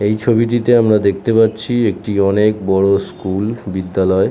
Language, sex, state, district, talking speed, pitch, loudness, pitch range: Bengali, male, West Bengal, Jhargram, 140 wpm, 105 Hz, -15 LUFS, 95-115 Hz